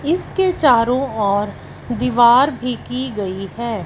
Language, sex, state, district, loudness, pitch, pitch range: Hindi, female, Punjab, Fazilka, -17 LUFS, 245 Hz, 215-265 Hz